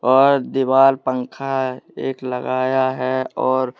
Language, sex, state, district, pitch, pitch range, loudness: Hindi, male, Jharkhand, Deoghar, 130 Hz, 130-135 Hz, -19 LUFS